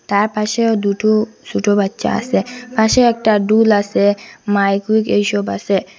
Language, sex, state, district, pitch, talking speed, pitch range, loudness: Bengali, female, Assam, Hailakandi, 210 Hz, 140 wpm, 205-220 Hz, -16 LUFS